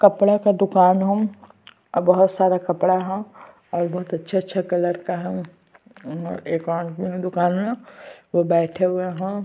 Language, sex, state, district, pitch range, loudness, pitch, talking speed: Hindi, female, Chhattisgarh, Sukma, 175-195 Hz, -21 LUFS, 185 Hz, 160 wpm